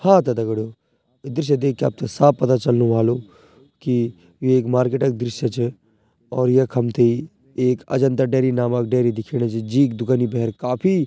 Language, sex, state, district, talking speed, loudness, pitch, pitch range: Garhwali, male, Uttarakhand, Tehri Garhwal, 180 wpm, -20 LUFS, 125 Hz, 120-130 Hz